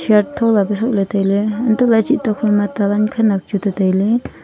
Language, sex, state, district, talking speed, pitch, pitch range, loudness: Wancho, female, Arunachal Pradesh, Longding, 190 wpm, 210 Hz, 200-225 Hz, -16 LUFS